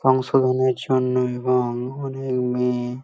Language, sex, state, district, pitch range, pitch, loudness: Bengali, male, West Bengal, Malda, 125-130 Hz, 125 Hz, -22 LUFS